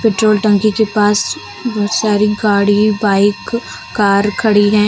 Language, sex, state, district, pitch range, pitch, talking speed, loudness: Hindi, female, Uttar Pradesh, Lucknow, 205-215 Hz, 210 Hz, 135 wpm, -13 LUFS